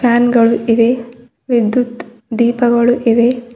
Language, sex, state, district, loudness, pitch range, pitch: Kannada, female, Karnataka, Bidar, -13 LUFS, 235-245 Hz, 240 Hz